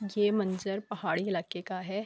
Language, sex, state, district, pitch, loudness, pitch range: Urdu, female, Andhra Pradesh, Anantapur, 195 Hz, -32 LUFS, 185-205 Hz